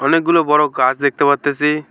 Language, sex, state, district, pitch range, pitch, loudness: Bengali, male, West Bengal, Alipurduar, 140-155 Hz, 150 Hz, -15 LUFS